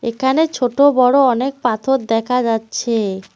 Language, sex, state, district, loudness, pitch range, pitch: Bengali, female, West Bengal, Cooch Behar, -16 LUFS, 225-265 Hz, 250 Hz